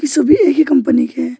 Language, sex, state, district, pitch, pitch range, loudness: Hindi, male, West Bengal, Alipurduar, 295 Hz, 275-315 Hz, -13 LUFS